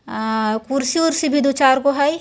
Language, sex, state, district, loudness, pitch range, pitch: Hindi, female, Bihar, Jahanabad, -17 LUFS, 260-295 Hz, 275 Hz